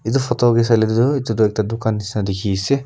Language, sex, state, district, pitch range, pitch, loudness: Nagamese, male, Nagaland, Kohima, 110-120 Hz, 115 Hz, -18 LUFS